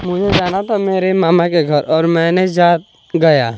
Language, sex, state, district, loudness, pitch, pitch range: Hindi, male, Bihar, West Champaran, -14 LUFS, 175 Hz, 165-185 Hz